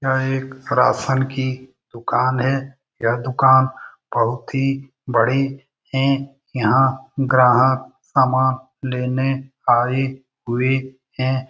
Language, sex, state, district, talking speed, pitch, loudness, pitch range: Hindi, male, Bihar, Lakhisarai, 100 wpm, 130 Hz, -19 LUFS, 130-135 Hz